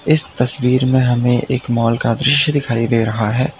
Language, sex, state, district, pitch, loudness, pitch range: Hindi, male, Uttar Pradesh, Lalitpur, 125 Hz, -16 LUFS, 115-135 Hz